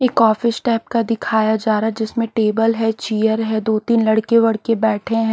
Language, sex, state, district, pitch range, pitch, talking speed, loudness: Hindi, female, Haryana, Charkhi Dadri, 220-230 Hz, 225 Hz, 215 wpm, -17 LUFS